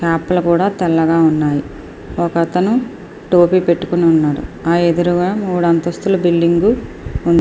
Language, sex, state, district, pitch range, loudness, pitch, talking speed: Telugu, female, Andhra Pradesh, Srikakulam, 165-180 Hz, -15 LUFS, 170 Hz, 120 wpm